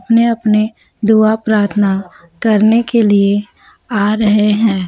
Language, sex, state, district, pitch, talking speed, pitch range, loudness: Hindi, female, Chhattisgarh, Raipur, 215 Hz, 125 wpm, 205-220 Hz, -13 LUFS